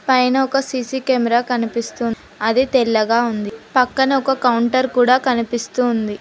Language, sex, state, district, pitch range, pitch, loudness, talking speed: Telugu, female, Telangana, Mahabubabad, 230-260 Hz, 245 Hz, -17 LUFS, 135 wpm